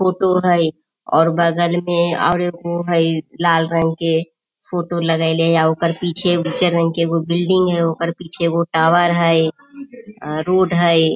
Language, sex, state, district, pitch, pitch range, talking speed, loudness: Maithili, female, Bihar, Samastipur, 170 Hz, 165-175 Hz, 155 wpm, -17 LUFS